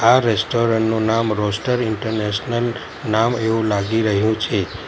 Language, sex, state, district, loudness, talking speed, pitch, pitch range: Gujarati, male, Gujarat, Valsad, -19 LUFS, 135 wpm, 110 Hz, 105-115 Hz